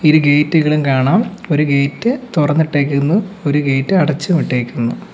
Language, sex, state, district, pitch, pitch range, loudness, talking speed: Malayalam, male, Kerala, Kollam, 150 Hz, 140-165 Hz, -15 LUFS, 105 wpm